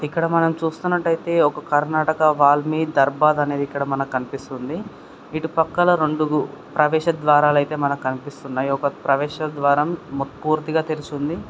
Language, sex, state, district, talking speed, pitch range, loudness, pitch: Telugu, male, Karnataka, Dharwad, 120 wpm, 140-160 Hz, -20 LUFS, 150 Hz